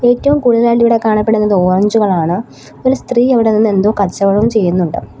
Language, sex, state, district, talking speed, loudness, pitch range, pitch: Malayalam, female, Kerala, Kollam, 140 wpm, -12 LUFS, 195-235 Hz, 215 Hz